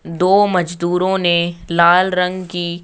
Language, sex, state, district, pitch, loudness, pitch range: Hindi, male, Rajasthan, Jaipur, 175 Hz, -15 LUFS, 170-185 Hz